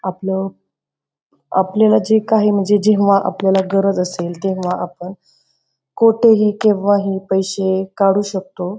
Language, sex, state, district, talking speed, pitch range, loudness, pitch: Marathi, female, Maharashtra, Pune, 110 wpm, 190-205 Hz, -16 LUFS, 195 Hz